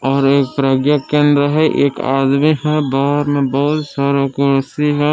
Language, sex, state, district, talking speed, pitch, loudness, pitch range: Hindi, male, Jharkhand, Palamu, 165 wpm, 140 Hz, -15 LUFS, 135-150 Hz